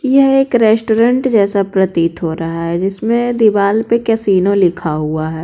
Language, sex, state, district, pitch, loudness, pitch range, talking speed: Hindi, female, Bihar, Patna, 200 Hz, -14 LUFS, 170-230 Hz, 165 wpm